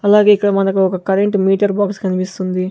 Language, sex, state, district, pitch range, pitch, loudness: Telugu, male, Andhra Pradesh, Sri Satya Sai, 190-205 Hz, 195 Hz, -15 LUFS